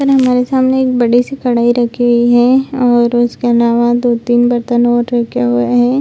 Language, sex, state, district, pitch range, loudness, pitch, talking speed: Hindi, female, Bihar, Lakhisarai, 240-250 Hz, -12 LUFS, 240 Hz, 190 wpm